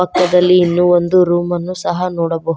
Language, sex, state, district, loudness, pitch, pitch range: Kannada, female, Karnataka, Koppal, -14 LUFS, 180 Hz, 175-180 Hz